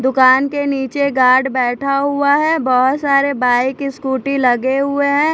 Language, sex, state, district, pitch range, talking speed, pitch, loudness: Hindi, female, Chhattisgarh, Raipur, 260-280 Hz, 155 wpm, 275 Hz, -15 LUFS